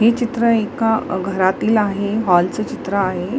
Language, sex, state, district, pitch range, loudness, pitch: Marathi, female, Maharashtra, Mumbai Suburban, 185-230 Hz, -18 LUFS, 215 Hz